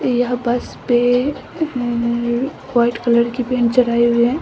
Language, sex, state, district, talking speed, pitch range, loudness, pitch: Hindi, female, Bihar, Samastipur, 135 wpm, 235-250 Hz, -17 LUFS, 240 Hz